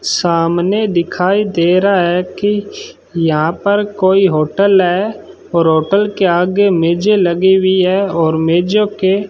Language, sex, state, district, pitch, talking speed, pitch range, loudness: Hindi, male, Rajasthan, Bikaner, 185 Hz, 150 wpm, 170-200 Hz, -13 LUFS